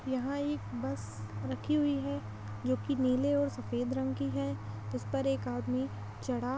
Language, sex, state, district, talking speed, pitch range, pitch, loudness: Hindi, female, Bihar, Gaya, 180 wpm, 105-150 Hz, 125 Hz, -34 LUFS